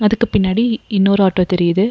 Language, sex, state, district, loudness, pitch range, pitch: Tamil, female, Tamil Nadu, Nilgiris, -15 LUFS, 185-220 Hz, 200 Hz